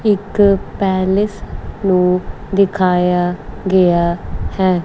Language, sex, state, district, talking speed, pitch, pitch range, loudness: Punjabi, female, Punjab, Kapurthala, 75 wpm, 190 Hz, 180-200 Hz, -16 LUFS